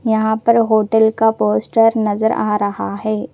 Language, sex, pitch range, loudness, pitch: Hindi, female, 210-225 Hz, -15 LUFS, 220 Hz